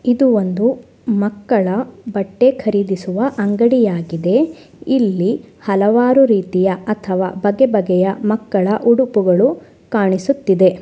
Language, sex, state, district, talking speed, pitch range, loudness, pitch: Kannada, female, Karnataka, Shimoga, 85 wpm, 190-245 Hz, -16 LUFS, 210 Hz